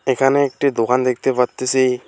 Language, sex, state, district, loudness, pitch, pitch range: Bengali, male, West Bengal, Alipurduar, -17 LUFS, 130 Hz, 125-135 Hz